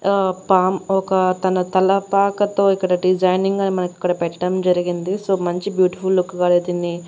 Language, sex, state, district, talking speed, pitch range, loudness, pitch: Telugu, female, Andhra Pradesh, Annamaya, 145 wpm, 180-195 Hz, -18 LUFS, 185 Hz